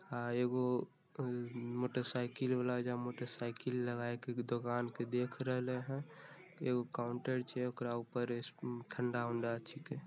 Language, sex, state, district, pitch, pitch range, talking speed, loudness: Maithili, male, Bihar, Begusarai, 125 Hz, 120-125 Hz, 125 wpm, -40 LUFS